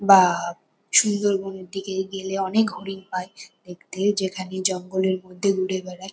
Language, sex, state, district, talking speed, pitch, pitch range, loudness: Bengali, female, West Bengal, North 24 Parganas, 125 wpm, 190 Hz, 185-195 Hz, -23 LUFS